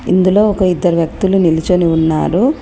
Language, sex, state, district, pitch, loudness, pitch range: Telugu, female, Telangana, Komaram Bheem, 180 Hz, -13 LUFS, 165-195 Hz